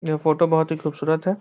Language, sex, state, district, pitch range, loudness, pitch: Hindi, male, Bihar, Muzaffarpur, 155-165 Hz, -21 LUFS, 160 Hz